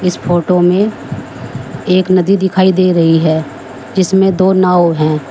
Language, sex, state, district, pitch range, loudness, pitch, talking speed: Hindi, female, Uttar Pradesh, Shamli, 155-185 Hz, -11 LUFS, 180 Hz, 145 wpm